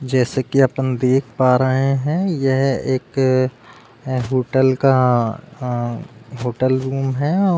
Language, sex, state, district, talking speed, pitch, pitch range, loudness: Hindi, male, Uttar Pradesh, Deoria, 125 wpm, 130 Hz, 125-135 Hz, -18 LUFS